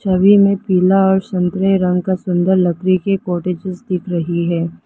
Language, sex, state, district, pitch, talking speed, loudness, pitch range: Hindi, female, Arunachal Pradesh, Lower Dibang Valley, 185 Hz, 175 wpm, -15 LUFS, 180-190 Hz